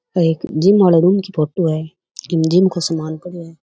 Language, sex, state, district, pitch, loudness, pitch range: Rajasthani, female, Rajasthan, Churu, 170 Hz, -16 LUFS, 160-185 Hz